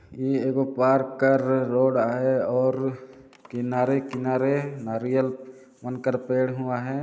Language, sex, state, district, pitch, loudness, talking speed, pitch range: Chhattisgarhi, male, Chhattisgarh, Jashpur, 130 Hz, -24 LUFS, 110 wpm, 125-135 Hz